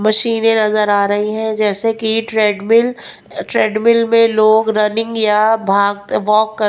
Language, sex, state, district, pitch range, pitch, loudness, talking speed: Hindi, female, Punjab, Pathankot, 210-225 Hz, 220 Hz, -14 LUFS, 145 wpm